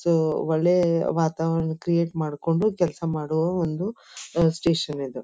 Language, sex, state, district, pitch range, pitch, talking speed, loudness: Kannada, female, Karnataka, Dharwad, 160-170 Hz, 165 Hz, 105 wpm, -24 LUFS